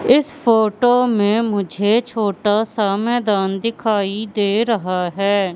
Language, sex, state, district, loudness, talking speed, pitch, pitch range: Hindi, female, Madhya Pradesh, Katni, -18 LUFS, 110 wpm, 215 Hz, 200-230 Hz